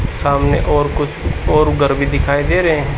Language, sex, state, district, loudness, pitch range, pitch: Hindi, male, Haryana, Charkhi Dadri, -15 LUFS, 140-155 Hz, 145 Hz